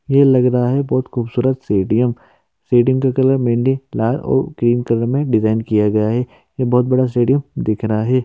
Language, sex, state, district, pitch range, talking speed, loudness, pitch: Hindi, male, Uttarakhand, Uttarkashi, 115-130 Hz, 195 wpm, -16 LUFS, 125 Hz